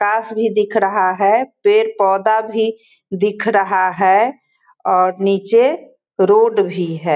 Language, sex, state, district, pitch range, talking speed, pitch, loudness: Hindi, female, Bihar, Sitamarhi, 195-235 Hz, 125 wpm, 220 Hz, -15 LUFS